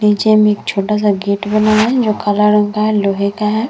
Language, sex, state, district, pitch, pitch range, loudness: Hindi, female, Bihar, Vaishali, 210 Hz, 205-215 Hz, -14 LUFS